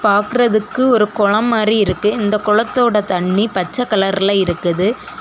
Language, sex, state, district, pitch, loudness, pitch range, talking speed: Tamil, female, Tamil Nadu, Kanyakumari, 210 Hz, -15 LUFS, 195-220 Hz, 125 wpm